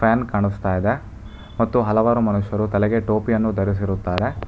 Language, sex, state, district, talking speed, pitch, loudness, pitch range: Kannada, male, Karnataka, Bangalore, 105 wpm, 105 Hz, -20 LUFS, 100-115 Hz